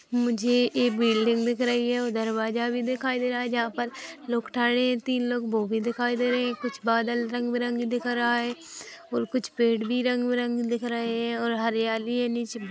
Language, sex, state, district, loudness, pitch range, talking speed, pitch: Hindi, female, Chhattisgarh, Bilaspur, -26 LUFS, 235-245 Hz, 210 wpm, 240 Hz